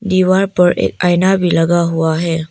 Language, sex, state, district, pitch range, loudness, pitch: Hindi, female, Arunachal Pradesh, Papum Pare, 165-185 Hz, -13 LUFS, 175 Hz